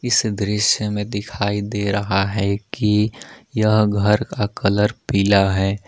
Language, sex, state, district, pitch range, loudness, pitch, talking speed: Hindi, male, Jharkhand, Palamu, 100-105 Hz, -19 LUFS, 105 Hz, 145 wpm